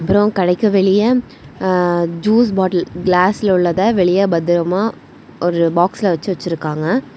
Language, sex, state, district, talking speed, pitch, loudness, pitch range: Tamil, female, Tamil Nadu, Kanyakumari, 115 wpm, 185 Hz, -15 LUFS, 175-200 Hz